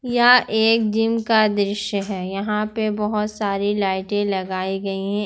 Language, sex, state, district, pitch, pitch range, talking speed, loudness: Hindi, female, Jharkhand, Ranchi, 210 Hz, 195-220 Hz, 160 wpm, -20 LUFS